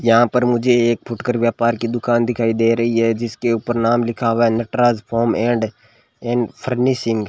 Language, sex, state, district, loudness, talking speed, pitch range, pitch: Hindi, male, Rajasthan, Bikaner, -18 LUFS, 200 wpm, 115-120 Hz, 115 Hz